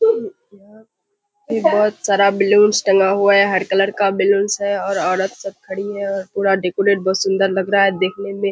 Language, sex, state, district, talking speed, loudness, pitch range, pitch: Hindi, female, Bihar, Kishanganj, 195 wpm, -17 LUFS, 195-205 Hz, 200 Hz